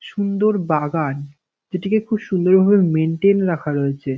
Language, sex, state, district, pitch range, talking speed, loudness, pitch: Bengali, male, West Bengal, North 24 Parganas, 150-200 Hz, 130 wpm, -18 LUFS, 180 Hz